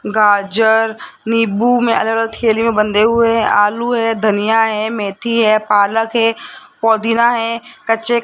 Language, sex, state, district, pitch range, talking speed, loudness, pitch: Hindi, male, Rajasthan, Jaipur, 215-230 Hz, 155 wpm, -14 LUFS, 225 Hz